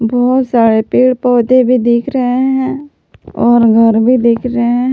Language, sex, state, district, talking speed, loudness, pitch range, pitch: Hindi, female, Jharkhand, Palamu, 170 wpm, -11 LUFS, 235-255 Hz, 245 Hz